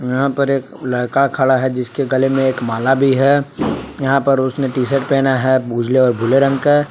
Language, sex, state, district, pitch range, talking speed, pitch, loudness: Hindi, male, Jharkhand, Palamu, 130-135 Hz, 215 wpm, 135 Hz, -16 LUFS